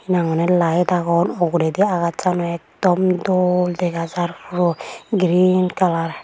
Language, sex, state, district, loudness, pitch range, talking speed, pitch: Chakma, female, Tripura, Unakoti, -19 LUFS, 170-180 Hz, 145 wpm, 175 Hz